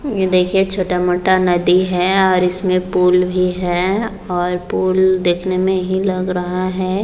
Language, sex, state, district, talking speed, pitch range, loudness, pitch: Hindi, female, Bihar, Muzaffarpur, 155 wpm, 180-190 Hz, -16 LUFS, 185 Hz